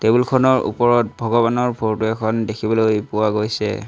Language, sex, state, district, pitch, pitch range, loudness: Assamese, male, Assam, Sonitpur, 110 Hz, 110-120 Hz, -18 LUFS